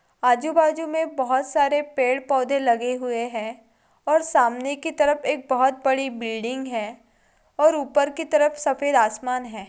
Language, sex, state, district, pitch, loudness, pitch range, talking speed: Hindi, female, Goa, North and South Goa, 265 Hz, -22 LUFS, 245-295 Hz, 155 wpm